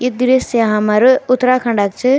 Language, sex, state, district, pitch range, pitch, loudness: Garhwali, male, Uttarakhand, Tehri Garhwal, 220-255 Hz, 250 Hz, -13 LUFS